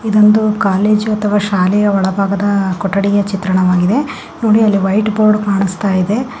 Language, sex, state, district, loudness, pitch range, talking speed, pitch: Kannada, female, Karnataka, Gulbarga, -13 LUFS, 195-215 Hz, 130 wpm, 200 Hz